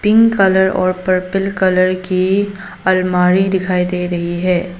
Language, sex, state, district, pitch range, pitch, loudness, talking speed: Hindi, female, Arunachal Pradesh, Papum Pare, 180-195 Hz, 185 Hz, -15 LUFS, 135 wpm